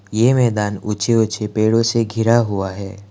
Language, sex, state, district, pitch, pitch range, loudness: Hindi, male, Assam, Kamrup Metropolitan, 110 Hz, 105-115 Hz, -17 LUFS